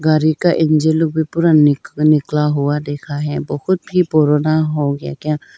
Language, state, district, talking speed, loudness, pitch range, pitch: Hindi, Arunachal Pradesh, Lower Dibang Valley, 170 wpm, -16 LUFS, 150-160 Hz, 155 Hz